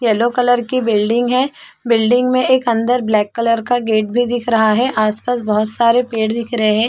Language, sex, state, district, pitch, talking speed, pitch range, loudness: Hindi, female, Chhattisgarh, Bastar, 235 Hz, 225 wpm, 220-245 Hz, -15 LUFS